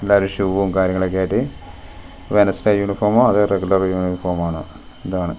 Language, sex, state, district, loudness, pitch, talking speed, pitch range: Malayalam, male, Kerala, Wayanad, -18 LUFS, 95 Hz, 120 wpm, 90-100 Hz